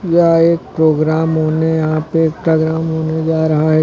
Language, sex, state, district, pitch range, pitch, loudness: Hindi, male, Uttar Pradesh, Lucknow, 155-160 Hz, 160 Hz, -14 LUFS